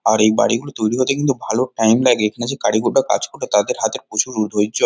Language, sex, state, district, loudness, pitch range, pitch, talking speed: Bengali, male, West Bengal, Kolkata, -18 LUFS, 110-130 Hz, 115 Hz, 245 wpm